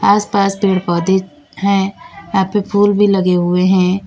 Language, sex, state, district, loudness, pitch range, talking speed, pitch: Hindi, female, Uttar Pradesh, Lalitpur, -14 LUFS, 185-200 Hz, 175 wpm, 195 Hz